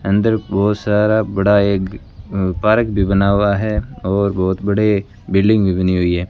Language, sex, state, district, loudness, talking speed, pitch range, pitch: Hindi, male, Rajasthan, Bikaner, -16 LUFS, 170 wpm, 95-105 Hz, 100 Hz